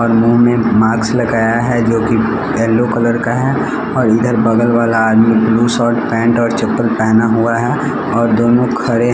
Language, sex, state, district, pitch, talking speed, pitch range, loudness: Hindi, male, Bihar, West Champaran, 115 Hz, 185 wpm, 115-120 Hz, -13 LUFS